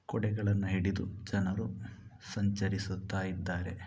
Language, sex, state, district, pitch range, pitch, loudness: Kannada, male, Karnataka, Dakshina Kannada, 95-105 Hz, 100 Hz, -34 LUFS